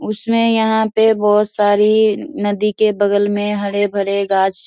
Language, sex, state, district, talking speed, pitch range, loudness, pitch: Hindi, female, Bihar, Saharsa, 165 wpm, 205-215 Hz, -15 LUFS, 210 Hz